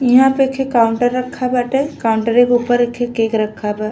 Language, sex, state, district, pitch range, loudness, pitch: Bhojpuri, female, Uttar Pradesh, Deoria, 225-255 Hz, -16 LUFS, 245 Hz